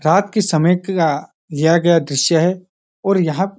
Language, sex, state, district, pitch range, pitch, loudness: Hindi, male, Uttarakhand, Uttarkashi, 160-190 Hz, 175 Hz, -16 LUFS